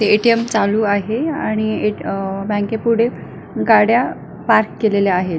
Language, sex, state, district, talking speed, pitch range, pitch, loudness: Marathi, female, Maharashtra, Pune, 120 wpm, 200-225 Hz, 210 Hz, -17 LUFS